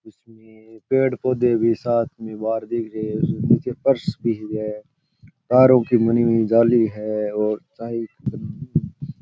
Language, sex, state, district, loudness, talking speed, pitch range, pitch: Rajasthani, male, Rajasthan, Churu, -20 LUFS, 150 wpm, 110-125 Hz, 115 Hz